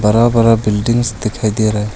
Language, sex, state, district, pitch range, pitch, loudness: Hindi, male, Arunachal Pradesh, Longding, 105-115 Hz, 110 Hz, -14 LUFS